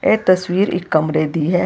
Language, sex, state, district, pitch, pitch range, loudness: Punjabi, female, Karnataka, Bangalore, 175 Hz, 155-185 Hz, -17 LUFS